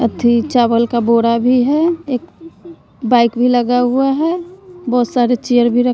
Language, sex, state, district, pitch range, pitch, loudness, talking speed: Hindi, female, Bihar, West Champaran, 235-295 Hz, 245 Hz, -14 LUFS, 170 wpm